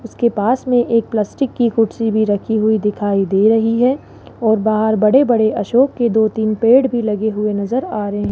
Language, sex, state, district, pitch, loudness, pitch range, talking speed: Hindi, male, Rajasthan, Jaipur, 220 Hz, -16 LUFS, 215-235 Hz, 215 wpm